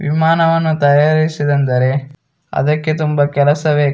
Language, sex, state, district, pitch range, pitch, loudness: Kannada, male, Karnataka, Dakshina Kannada, 145-155 Hz, 150 Hz, -14 LUFS